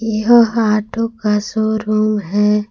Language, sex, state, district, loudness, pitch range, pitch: Hindi, female, Jharkhand, Palamu, -15 LUFS, 210-225 Hz, 215 Hz